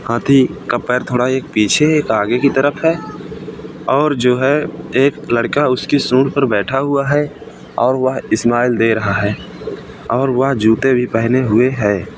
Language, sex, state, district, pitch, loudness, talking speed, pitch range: Hindi, male, Uttar Pradesh, Gorakhpur, 130 Hz, -15 LUFS, 170 wpm, 115-140 Hz